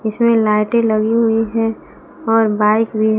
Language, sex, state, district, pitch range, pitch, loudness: Hindi, female, Jharkhand, Palamu, 215-230 Hz, 225 Hz, -15 LUFS